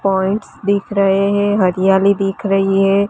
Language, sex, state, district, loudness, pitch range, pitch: Hindi, female, Gujarat, Gandhinagar, -15 LUFS, 195-200 Hz, 195 Hz